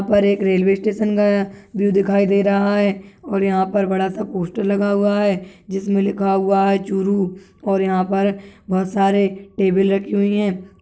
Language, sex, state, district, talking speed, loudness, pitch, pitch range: Hindi, female, Rajasthan, Churu, 195 wpm, -18 LUFS, 195 Hz, 195-200 Hz